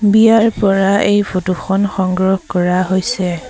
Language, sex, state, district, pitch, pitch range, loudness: Assamese, female, Assam, Sonitpur, 190 Hz, 185-205 Hz, -14 LUFS